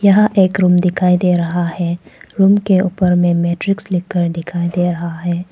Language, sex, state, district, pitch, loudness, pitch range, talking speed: Hindi, female, Arunachal Pradesh, Papum Pare, 180 Hz, -15 LUFS, 175-190 Hz, 185 wpm